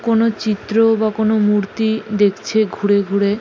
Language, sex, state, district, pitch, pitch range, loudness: Bengali, female, West Bengal, Jalpaiguri, 215 Hz, 205-220 Hz, -17 LUFS